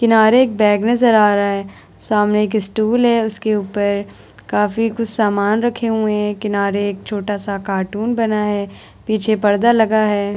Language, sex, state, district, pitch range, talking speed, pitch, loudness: Hindi, female, Bihar, Vaishali, 205-220 Hz, 170 wpm, 210 Hz, -17 LUFS